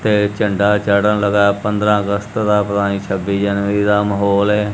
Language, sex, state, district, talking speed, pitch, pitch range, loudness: Punjabi, male, Punjab, Kapurthala, 175 wpm, 105 Hz, 100-105 Hz, -16 LUFS